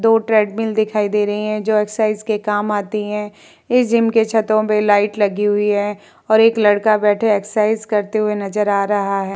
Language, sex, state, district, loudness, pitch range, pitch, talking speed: Hindi, female, Uttar Pradesh, Etah, -17 LUFS, 205-220 Hz, 210 Hz, 210 wpm